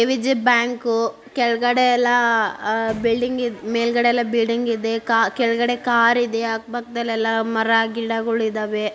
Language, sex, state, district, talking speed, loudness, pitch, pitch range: Kannada, female, Karnataka, Dharwad, 115 wpm, -20 LUFS, 230 Hz, 225-240 Hz